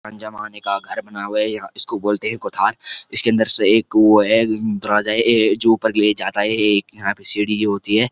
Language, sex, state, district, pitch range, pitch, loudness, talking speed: Hindi, male, Uttarakhand, Uttarkashi, 105-110 Hz, 105 Hz, -18 LUFS, 230 wpm